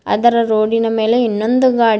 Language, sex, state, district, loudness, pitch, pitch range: Kannada, female, Karnataka, Bidar, -14 LUFS, 230 Hz, 220-235 Hz